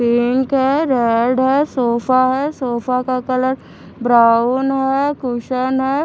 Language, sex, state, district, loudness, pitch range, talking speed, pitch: Hindi, female, Haryana, Charkhi Dadri, -16 LUFS, 240-265 Hz, 120 wpm, 255 Hz